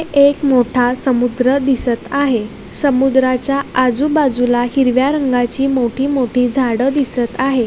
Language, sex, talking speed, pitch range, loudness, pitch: Marathi, female, 110 wpm, 245-275 Hz, -15 LUFS, 260 Hz